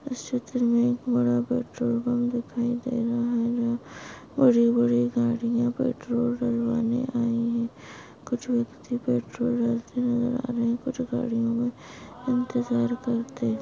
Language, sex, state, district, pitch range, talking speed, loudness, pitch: Hindi, female, Maharashtra, Solapur, 235-245 Hz, 135 wpm, -26 LUFS, 240 Hz